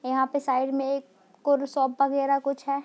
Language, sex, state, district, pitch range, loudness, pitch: Hindi, female, Bihar, Darbhanga, 265-275 Hz, -26 LUFS, 275 Hz